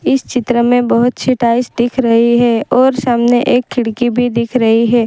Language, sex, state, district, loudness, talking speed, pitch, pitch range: Hindi, female, Gujarat, Valsad, -12 LUFS, 200 wpm, 240 Hz, 235-250 Hz